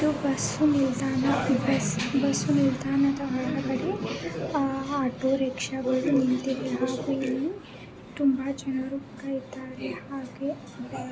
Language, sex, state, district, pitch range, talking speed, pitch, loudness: Kannada, female, Karnataka, Belgaum, 260-275 Hz, 80 wpm, 270 Hz, -27 LUFS